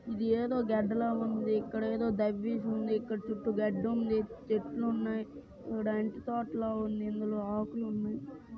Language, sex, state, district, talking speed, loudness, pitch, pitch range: Telugu, female, Andhra Pradesh, Srikakulam, 145 wpm, -33 LUFS, 220 Hz, 215-230 Hz